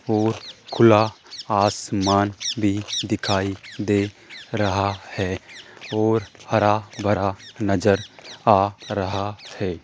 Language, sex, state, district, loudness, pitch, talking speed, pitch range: Hindi, male, Rajasthan, Jaipur, -22 LUFS, 105 Hz, 90 wpm, 100-110 Hz